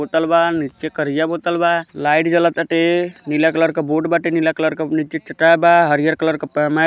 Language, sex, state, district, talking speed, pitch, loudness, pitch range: Bhojpuri, male, Uttar Pradesh, Gorakhpur, 185 wpm, 160 Hz, -17 LUFS, 155-170 Hz